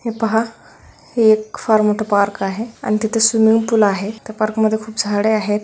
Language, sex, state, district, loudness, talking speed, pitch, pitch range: Marathi, female, Maharashtra, Solapur, -17 LUFS, 200 wpm, 220 Hz, 210-225 Hz